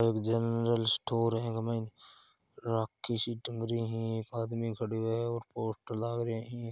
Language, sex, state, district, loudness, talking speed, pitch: Hindi, male, Rajasthan, Churu, -33 LUFS, 160 wpm, 115 Hz